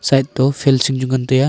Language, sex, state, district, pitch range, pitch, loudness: Wancho, male, Arunachal Pradesh, Longding, 130-135 Hz, 135 Hz, -16 LUFS